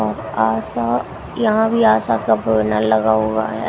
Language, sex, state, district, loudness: Hindi, female, Haryana, Jhajjar, -17 LUFS